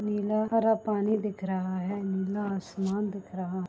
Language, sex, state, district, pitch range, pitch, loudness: Hindi, female, Bihar, Gaya, 190-210 Hz, 200 Hz, -30 LUFS